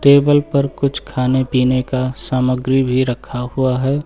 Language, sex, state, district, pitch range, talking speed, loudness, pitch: Hindi, male, Uttar Pradesh, Lucknow, 130-140 Hz, 165 wpm, -17 LUFS, 130 Hz